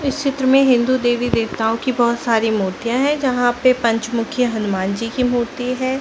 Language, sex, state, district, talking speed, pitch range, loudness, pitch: Hindi, female, Chhattisgarh, Bilaspur, 190 wpm, 230-255 Hz, -18 LUFS, 245 Hz